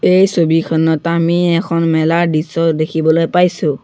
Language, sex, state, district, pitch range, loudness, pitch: Assamese, male, Assam, Sonitpur, 160-170 Hz, -14 LUFS, 165 Hz